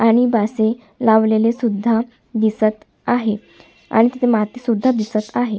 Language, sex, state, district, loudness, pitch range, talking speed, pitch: Marathi, female, Maharashtra, Sindhudurg, -18 LUFS, 215-240 Hz, 130 wpm, 225 Hz